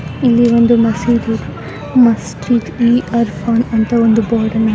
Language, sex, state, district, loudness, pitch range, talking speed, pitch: Kannada, female, Karnataka, Raichur, -13 LUFS, 225-240 Hz, 140 wpm, 235 Hz